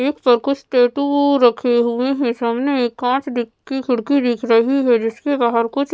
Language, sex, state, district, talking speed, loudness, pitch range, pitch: Hindi, female, Maharashtra, Mumbai Suburban, 200 wpm, -17 LUFS, 235-275 Hz, 250 Hz